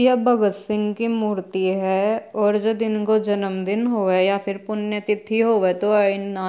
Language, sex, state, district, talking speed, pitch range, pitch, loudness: Marwari, female, Rajasthan, Churu, 165 wpm, 195-220 Hz, 210 Hz, -21 LUFS